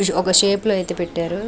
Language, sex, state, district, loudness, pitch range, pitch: Telugu, female, Andhra Pradesh, Anantapur, -18 LUFS, 175-200 Hz, 185 Hz